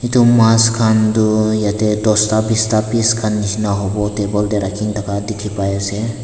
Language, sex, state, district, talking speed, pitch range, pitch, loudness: Nagamese, male, Nagaland, Dimapur, 145 wpm, 105-110 Hz, 110 Hz, -15 LUFS